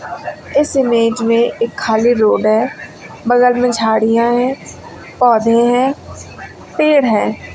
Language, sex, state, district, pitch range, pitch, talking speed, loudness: Hindi, female, Uttar Pradesh, Lucknow, 225-245 Hz, 235 Hz, 120 wpm, -13 LUFS